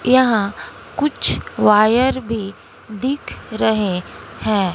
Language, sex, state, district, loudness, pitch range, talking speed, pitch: Hindi, female, Bihar, West Champaran, -18 LUFS, 205-255 Hz, 90 wpm, 220 Hz